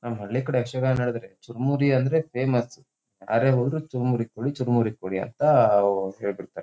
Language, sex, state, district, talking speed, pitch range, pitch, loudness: Kannada, male, Karnataka, Shimoga, 155 wpm, 115-130 Hz, 125 Hz, -24 LUFS